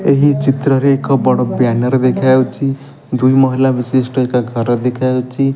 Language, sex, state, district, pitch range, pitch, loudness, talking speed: Odia, male, Odisha, Nuapada, 125-135 Hz, 130 Hz, -14 LUFS, 140 wpm